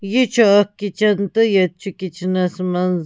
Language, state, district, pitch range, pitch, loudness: Kashmiri, Punjab, Kapurthala, 185-210 Hz, 195 Hz, -17 LUFS